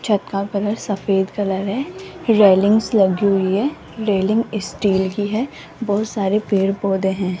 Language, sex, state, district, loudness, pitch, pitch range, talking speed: Hindi, female, Rajasthan, Jaipur, -19 LUFS, 200 Hz, 195-220 Hz, 155 wpm